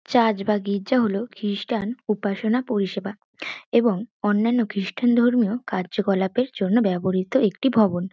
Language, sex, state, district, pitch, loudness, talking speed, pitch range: Bengali, female, West Bengal, North 24 Parganas, 215 Hz, -22 LUFS, 120 wpm, 195-240 Hz